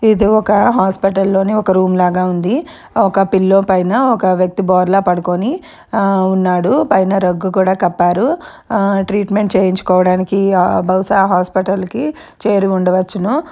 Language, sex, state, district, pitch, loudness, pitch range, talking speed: Telugu, female, Telangana, Karimnagar, 195 Hz, -14 LUFS, 185-210 Hz, 135 wpm